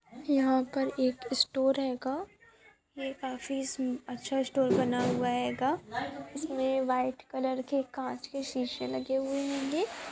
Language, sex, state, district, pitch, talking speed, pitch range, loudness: Hindi, female, Chhattisgarh, Rajnandgaon, 265 Hz, 130 wpm, 255-275 Hz, -32 LUFS